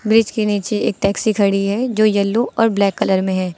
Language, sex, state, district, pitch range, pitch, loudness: Hindi, female, Uttar Pradesh, Lucknow, 195-220 Hz, 205 Hz, -17 LUFS